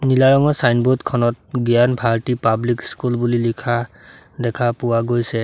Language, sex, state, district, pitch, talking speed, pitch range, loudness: Assamese, male, Assam, Sonitpur, 120 Hz, 145 wpm, 120-125 Hz, -18 LUFS